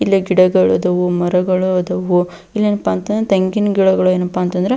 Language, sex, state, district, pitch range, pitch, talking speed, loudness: Kannada, female, Karnataka, Belgaum, 180-195 Hz, 185 Hz, 175 wpm, -15 LUFS